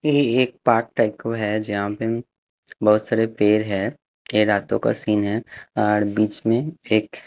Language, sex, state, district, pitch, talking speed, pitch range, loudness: Hindi, male, Haryana, Jhajjar, 110 Hz, 190 wpm, 105-115 Hz, -21 LUFS